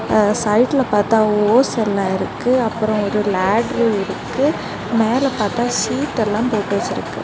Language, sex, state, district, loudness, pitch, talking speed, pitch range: Tamil, female, Tamil Nadu, Kanyakumari, -17 LUFS, 220 Hz, 135 wpm, 210-245 Hz